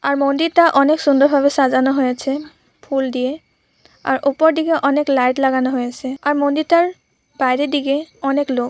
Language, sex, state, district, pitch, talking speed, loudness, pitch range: Bengali, female, West Bengal, Purulia, 280 Hz, 140 wpm, -17 LUFS, 265-295 Hz